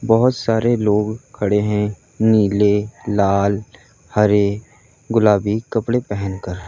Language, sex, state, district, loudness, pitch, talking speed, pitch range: Hindi, male, Uttar Pradesh, Lalitpur, -18 LUFS, 105 Hz, 100 wpm, 100-115 Hz